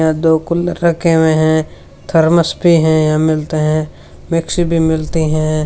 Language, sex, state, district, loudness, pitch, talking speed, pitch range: Hindi, female, Rajasthan, Bikaner, -14 LUFS, 160 Hz, 160 wpm, 155-165 Hz